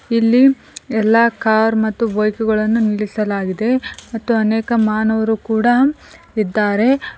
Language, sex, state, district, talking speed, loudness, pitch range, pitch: Kannada, female, Karnataka, Koppal, 100 wpm, -16 LUFS, 215-235 Hz, 220 Hz